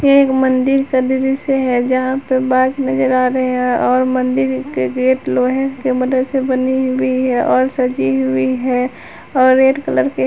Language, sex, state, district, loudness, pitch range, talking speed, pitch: Hindi, female, Jharkhand, Garhwa, -15 LUFS, 250-265 Hz, 185 wpm, 255 Hz